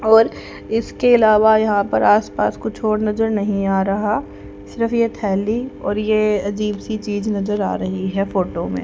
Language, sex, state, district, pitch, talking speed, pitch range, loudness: Hindi, female, Haryana, Jhajjar, 210 Hz, 175 wpm, 195-220 Hz, -18 LUFS